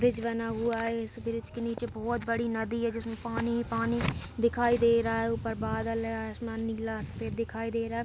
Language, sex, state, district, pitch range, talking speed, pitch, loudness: Hindi, female, Uttar Pradesh, Hamirpur, 225-235 Hz, 230 wpm, 230 Hz, -31 LUFS